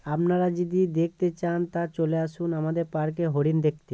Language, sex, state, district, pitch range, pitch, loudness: Bengali, male, West Bengal, Kolkata, 155-175 Hz, 165 Hz, -26 LUFS